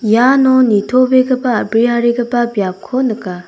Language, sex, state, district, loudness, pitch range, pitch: Garo, female, Meghalaya, South Garo Hills, -13 LUFS, 220-255 Hz, 240 Hz